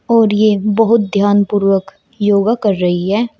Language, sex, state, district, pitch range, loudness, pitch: Hindi, female, Uttar Pradesh, Shamli, 200-220 Hz, -13 LUFS, 205 Hz